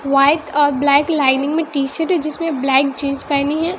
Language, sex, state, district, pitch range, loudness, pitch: Hindi, female, Bihar, West Champaran, 275-315 Hz, -16 LUFS, 285 Hz